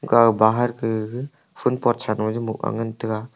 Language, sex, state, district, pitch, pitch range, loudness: Wancho, male, Arunachal Pradesh, Longding, 115 Hz, 110-120 Hz, -22 LUFS